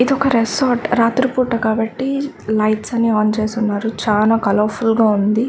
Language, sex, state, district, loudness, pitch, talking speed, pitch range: Telugu, female, Andhra Pradesh, Chittoor, -17 LUFS, 225 Hz, 165 wpm, 215-245 Hz